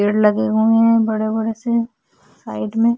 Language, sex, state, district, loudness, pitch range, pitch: Hindi, female, Chhattisgarh, Sukma, -17 LUFS, 215-230 Hz, 220 Hz